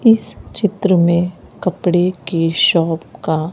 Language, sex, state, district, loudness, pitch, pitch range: Hindi, male, Chhattisgarh, Raipur, -16 LUFS, 175 Hz, 165-190 Hz